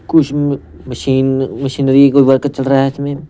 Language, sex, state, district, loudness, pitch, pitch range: Hindi, male, Punjab, Pathankot, -13 LUFS, 135 Hz, 135-140 Hz